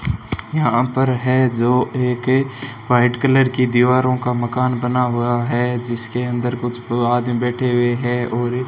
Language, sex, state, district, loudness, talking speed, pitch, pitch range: Hindi, male, Rajasthan, Bikaner, -18 LUFS, 150 wpm, 125 Hz, 120-125 Hz